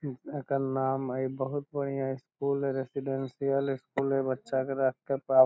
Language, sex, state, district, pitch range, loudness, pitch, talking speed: Magahi, male, Bihar, Lakhisarai, 130-140 Hz, -31 LUFS, 135 Hz, 175 wpm